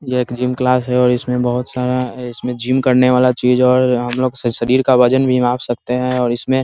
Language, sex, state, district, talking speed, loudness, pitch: Hindi, male, Bihar, Muzaffarpur, 225 wpm, -15 LUFS, 125 Hz